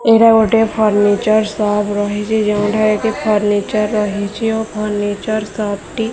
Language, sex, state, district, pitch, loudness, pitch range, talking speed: Odia, female, Odisha, Sambalpur, 215 Hz, -15 LUFS, 205-220 Hz, 145 wpm